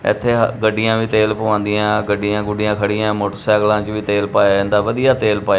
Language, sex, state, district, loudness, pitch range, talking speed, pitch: Punjabi, male, Punjab, Kapurthala, -16 LUFS, 105-110 Hz, 180 wpm, 105 Hz